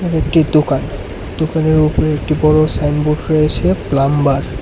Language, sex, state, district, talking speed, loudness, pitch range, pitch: Bengali, male, Tripura, West Tripura, 130 wpm, -14 LUFS, 135-155 Hz, 150 Hz